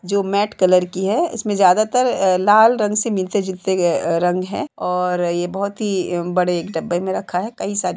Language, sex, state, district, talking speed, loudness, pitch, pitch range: Hindi, female, Uttar Pradesh, Jalaun, 220 wpm, -18 LUFS, 190 Hz, 180-205 Hz